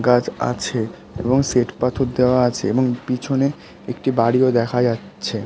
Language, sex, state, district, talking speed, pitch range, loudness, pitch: Bengali, male, West Bengal, Kolkata, 130 wpm, 120-130 Hz, -19 LUFS, 125 Hz